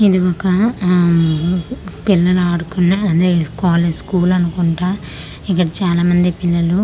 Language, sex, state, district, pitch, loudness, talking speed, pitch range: Telugu, female, Andhra Pradesh, Manyam, 180 Hz, -15 LUFS, 115 wpm, 170-185 Hz